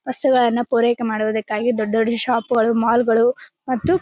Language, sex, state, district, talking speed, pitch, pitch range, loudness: Kannada, female, Karnataka, Bellary, 135 wpm, 235 Hz, 225-245 Hz, -18 LUFS